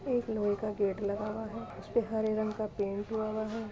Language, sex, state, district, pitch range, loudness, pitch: Hindi, female, Uttar Pradesh, Muzaffarnagar, 205-220 Hz, -34 LUFS, 215 Hz